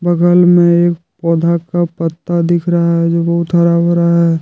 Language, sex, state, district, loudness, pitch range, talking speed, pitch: Hindi, male, Jharkhand, Deoghar, -12 LUFS, 170-175 Hz, 190 wpm, 170 Hz